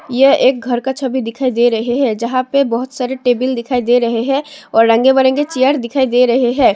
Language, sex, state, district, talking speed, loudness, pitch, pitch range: Hindi, female, Assam, Sonitpur, 230 wpm, -14 LUFS, 255 Hz, 240-270 Hz